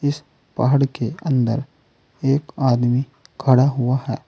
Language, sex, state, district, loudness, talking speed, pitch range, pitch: Hindi, male, Uttar Pradesh, Saharanpur, -20 LUFS, 110 wpm, 125-140 Hz, 135 Hz